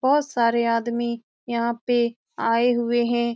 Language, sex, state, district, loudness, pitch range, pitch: Hindi, female, Bihar, Saran, -23 LUFS, 235-240 Hz, 235 Hz